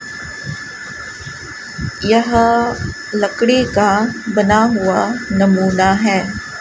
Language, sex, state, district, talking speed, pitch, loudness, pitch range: Hindi, male, Rajasthan, Bikaner, 65 wpm, 215 Hz, -15 LUFS, 195-235 Hz